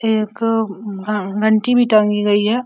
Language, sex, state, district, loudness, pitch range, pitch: Hindi, female, Bihar, Samastipur, -17 LUFS, 210-225 Hz, 215 Hz